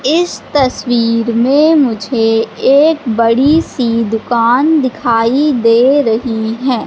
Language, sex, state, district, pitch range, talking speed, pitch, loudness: Hindi, female, Madhya Pradesh, Katni, 230-280 Hz, 105 wpm, 245 Hz, -12 LUFS